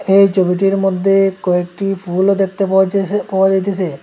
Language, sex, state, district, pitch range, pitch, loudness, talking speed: Bengali, male, Assam, Hailakandi, 185-195 Hz, 195 Hz, -15 LUFS, 150 wpm